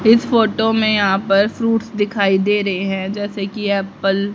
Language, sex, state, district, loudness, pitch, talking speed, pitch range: Hindi, female, Haryana, Rohtak, -17 LUFS, 205 Hz, 195 wpm, 195-220 Hz